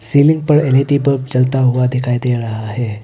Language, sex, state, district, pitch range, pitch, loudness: Hindi, male, Arunachal Pradesh, Papum Pare, 120-140 Hz, 125 Hz, -14 LUFS